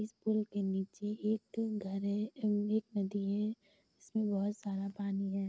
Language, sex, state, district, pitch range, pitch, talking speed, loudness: Hindi, female, Bihar, Darbhanga, 195-215 Hz, 205 Hz, 165 wpm, -37 LUFS